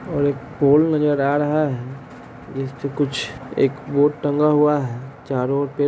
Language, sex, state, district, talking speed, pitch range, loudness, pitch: Hindi, male, Bihar, Sitamarhi, 195 wpm, 135-150 Hz, -20 LUFS, 140 Hz